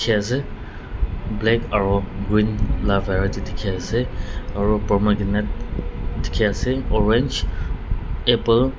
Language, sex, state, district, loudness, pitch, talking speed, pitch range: Nagamese, male, Nagaland, Dimapur, -22 LUFS, 105 Hz, 90 wpm, 100-115 Hz